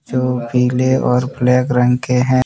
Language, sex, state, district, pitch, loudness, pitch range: Hindi, male, Jharkhand, Deoghar, 125 Hz, -15 LUFS, 125-130 Hz